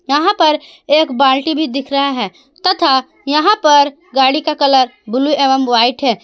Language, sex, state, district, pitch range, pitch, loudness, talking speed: Hindi, female, Jharkhand, Ranchi, 265-310 Hz, 280 Hz, -13 LUFS, 175 wpm